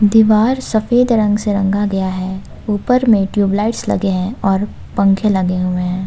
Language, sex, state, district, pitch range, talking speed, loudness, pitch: Hindi, female, Jharkhand, Ranchi, 195-220 Hz, 170 wpm, -15 LUFS, 205 Hz